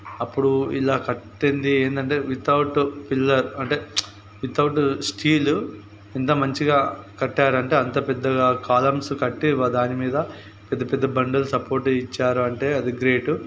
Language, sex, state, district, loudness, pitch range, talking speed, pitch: Telugu, male, Telangana, Karimnagar, -22 LUFS, 125-140 Hz, 120 wpm, 135 Hz